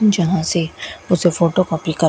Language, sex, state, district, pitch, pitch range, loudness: Hindi, female, Rajasthan, Bikaner, 170 Hz, 160-185 Hz, -18 LUFS